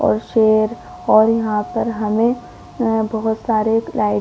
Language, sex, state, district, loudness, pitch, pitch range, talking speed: Hindi, female, Chhattisgarh, Korba, -18 LUFS, 220 Hz, 215-225 Hz, 155 wpm